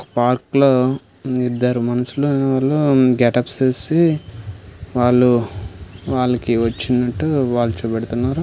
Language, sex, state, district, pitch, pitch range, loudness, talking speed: Telugu, male, Andhra Pradesh, Visakhapatnam, 125 Hz, 115-130 Hz, -17 LUFS, 85 wpm